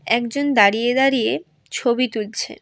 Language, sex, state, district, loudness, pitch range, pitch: Bengali, female, West Bengal, Alipurduar, -19 LUFS, 225-255 Hz, 240 Hz